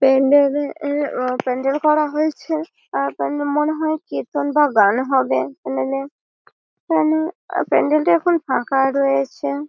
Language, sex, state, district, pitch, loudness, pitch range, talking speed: Bengali, female, West Bengal, Malda, 285 Hz, -19 LUFS, 255-305 Hz, 145 wpm